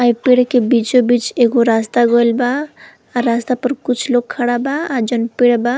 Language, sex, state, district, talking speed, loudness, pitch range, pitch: Bhojpuri, female, Uttar Pradesh, Varanasi, 220 wpm, -15 LUFS, 235-250 Hz, 245 Hz